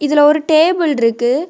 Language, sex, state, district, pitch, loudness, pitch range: Tamil, female, Tamil Nadu, Kanyakumari, 300 Hz, -13 LUFS, 270-320 Hz